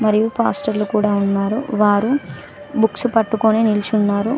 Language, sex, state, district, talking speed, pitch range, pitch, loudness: Telugu, female, Telangana, Mahabubabad, 110 wpm, 210-225 Hz, 215 Hz, -17 LUFS